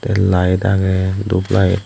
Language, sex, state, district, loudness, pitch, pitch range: Chakma, female, Tripura, West Tripura, -16 LUFS, 95 Hz, 95-100 Hz